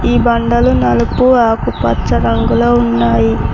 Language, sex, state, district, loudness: Telugu, female, Telangana, Mahabubabad, -12 LUFS